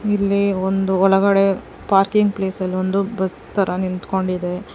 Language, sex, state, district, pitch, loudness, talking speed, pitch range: Kannada, female, Karnataka, Bangalore, 195 Hz, -19 LUFS, 100 wpm, 185-200 Hz